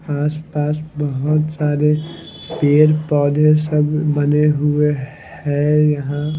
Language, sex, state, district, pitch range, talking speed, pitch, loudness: Hindi, male, Himachal Pradesh, Shimla, 145-155 Hz, 105 wpm, 150 Hz, -17 LUFS